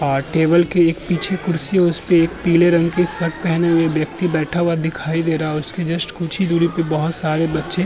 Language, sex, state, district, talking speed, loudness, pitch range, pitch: Hindi, male, Uttar Pradesh, Muzaffarnagar, 250 wpm, -17 LUFS, 160-175 Hz, 170 Hz